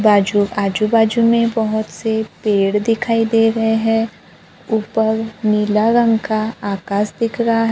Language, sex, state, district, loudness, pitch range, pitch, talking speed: Hindi, female, Maharashtra, Gondia, -17 LUFS, 210-225 Hz, 220 Hz, 145 wpm